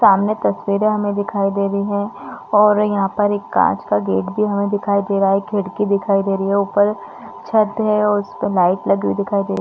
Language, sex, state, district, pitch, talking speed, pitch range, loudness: Hindi, female, Chhattisgarh, Balrampur, 200 Hz, 230 wpm, 195-205 Hz, -18 LUFS